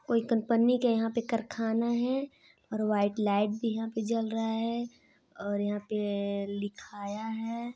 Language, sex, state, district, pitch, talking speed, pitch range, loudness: Hindi, female, Chhattisgarh, Sarguja, 225 Hz, 160 wpm, 205-235 Hz, -31 LUFS